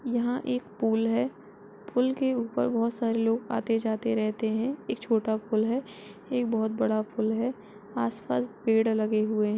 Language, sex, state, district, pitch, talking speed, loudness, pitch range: Hindi, female, Uttar Pradesh, Etah, 225 Hz, 175 wpm, -28 LUFS, 215-240 Hz